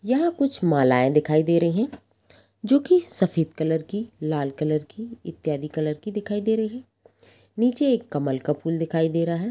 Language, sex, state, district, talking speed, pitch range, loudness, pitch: Hindi, female, Bihar, Darbhanga, 195 wpm, 155-225 Hz, -23 LUFS, 170 Hz